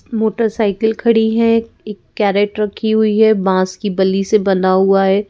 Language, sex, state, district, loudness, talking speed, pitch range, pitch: Hindi, female, Madhya Pradesh, Bhopal, -14 LUFS, 170 wpm, 195-220 Hz, 210 Hz